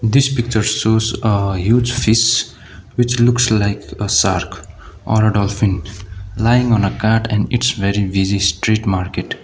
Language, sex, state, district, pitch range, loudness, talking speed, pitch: English, male, Sikkim, Gangtok, 95-115 Hz, -16 LUFS, 145 wpm, 105 Hz